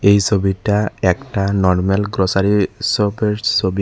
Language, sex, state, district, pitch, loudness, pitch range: Bengali, male, Tripura, Unakoti, 100 Hz, -17 LUFS, 95-105 Hz